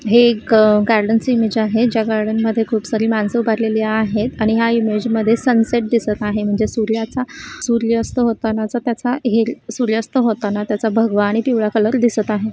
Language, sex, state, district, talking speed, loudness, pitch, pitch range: Marathi, female, Maharashtra, Solapur, 175 wpm, -17 LUFS, 225 Hz, 215-235 Hz